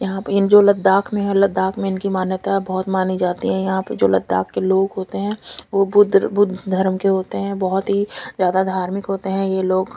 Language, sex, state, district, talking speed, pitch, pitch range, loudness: Hindi, female, Chandigarh, Chandigarh, 230 wpm, 190 Hz, 185-200 Hz, -18 LUFS